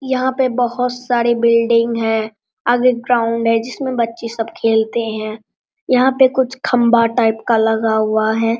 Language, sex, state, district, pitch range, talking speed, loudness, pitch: Hindi, male, Bihar, Araria, 225-250 Hz, 160 wpm, -16 LUFS, 230 Hz